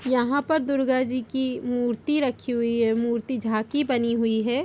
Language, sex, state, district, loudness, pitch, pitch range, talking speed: Hindi, female, Bihar, Gaya, -24 LUFS, 245 Hz, 235-265 Hz, 180 wpm